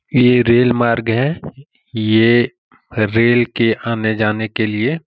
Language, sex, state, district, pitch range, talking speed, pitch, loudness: Hindi, male, Bihar, Saran, 110-125 Hz, 140 wpm, 115 Hz, -15 LUFS